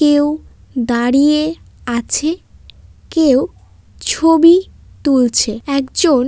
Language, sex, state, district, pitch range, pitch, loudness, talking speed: Bengali, female, West Bengal, Paschim Medinipur, 240-310 Hz, 280 Hz, -14 LUFS, 85 wpm